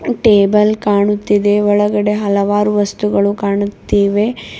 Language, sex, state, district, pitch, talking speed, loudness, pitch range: Kannada, female, Karnataka, Bidar, 205 Hz, 80 wpm, -14 LUFS, 200-210 Hz